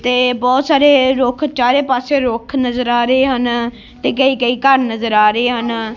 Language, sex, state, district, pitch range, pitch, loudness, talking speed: Punjabi, female, Punjab, Kapurthala, 240-265 Hz, 250 Hz, -14 LUFS, 190 wpm